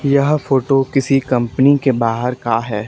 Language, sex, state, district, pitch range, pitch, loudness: Hindi, male, Haryana, Charkhi Dadri, 120-140 Hz, 135 Hz, -16 LUFS